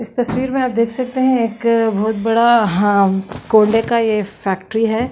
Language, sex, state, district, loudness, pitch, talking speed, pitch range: Kumaoni, female, Uttarakhand, Uttarkashi, -16 LUFS, 225 Hz, 165 wpm, 210-235 Hz